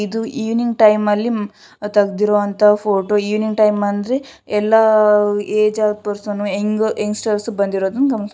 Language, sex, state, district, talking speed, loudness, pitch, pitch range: Kannada, female, Karnataka, Shimoga, 120 wpm, -17 LUFS, 210 Hz, 205-220 Hz